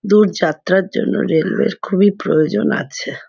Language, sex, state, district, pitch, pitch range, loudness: Bengali, female, West Bengal, Kolkata, 195 Hz, 160-210 Hz, -16 LUFS